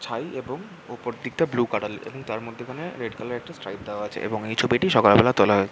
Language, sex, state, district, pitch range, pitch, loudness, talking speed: Bengali, male, West Bengal, Jhargram, 105-125 Hz, 120 Hz, -24 LUFS, 265 wpm